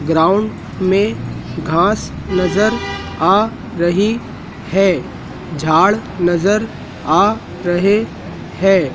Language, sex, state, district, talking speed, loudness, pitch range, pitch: Hindi, male, Madhya Pradesh, Dhar, 80 wpm, -16 LUFS, 170-205 Hz, 190 Hz